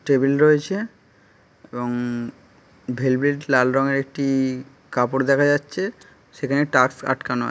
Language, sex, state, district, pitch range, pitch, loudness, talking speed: Bengali, male, West Bengal, Kolkata, 125-145 Hz, 135 Hz, -21 LUFS, 110 wpm